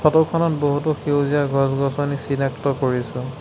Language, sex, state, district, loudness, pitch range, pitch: Assamese, male, Assam, Sonitpur, -21 LUFS, 135-145 Hz, 145 Hz